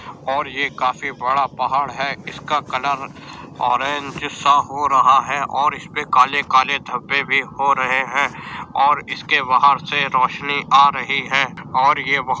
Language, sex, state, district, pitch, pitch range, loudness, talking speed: Hindi, male, Uttar Pradesh, Jyotiba Phule Nagar, 140 Hz, 130-140 Hz, -18 LUFS, 160 wpm